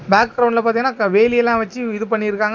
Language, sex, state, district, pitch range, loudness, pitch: Tamil, male, Tamil Nadu, Kanyakumari, 215-240 Hz, -17 LUFS, 230 Hz